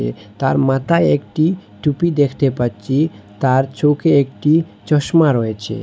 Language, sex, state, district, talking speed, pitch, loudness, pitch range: Bengali, male, Assam, Hailakandi, 115 wpm, 140 Hz, -17 LUFS, 120-155 Hz